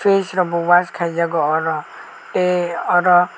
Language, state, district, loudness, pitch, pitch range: Kokborok, Tripura, West Tripura, -18 LUFS, 175 Hz, 170-180 Hz